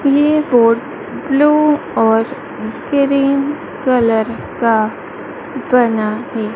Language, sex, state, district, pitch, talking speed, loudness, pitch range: Hindi, female, Madhya Pradesh, Dhar, 255 Hz, 80 wpm, -15 LUFS, 225-285 Hz